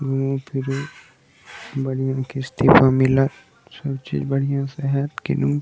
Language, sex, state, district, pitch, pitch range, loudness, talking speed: Maithili, male, Bihar, Saharsa, 135 Hz, 130-140 Hz, -21 LUFS, 140 wpm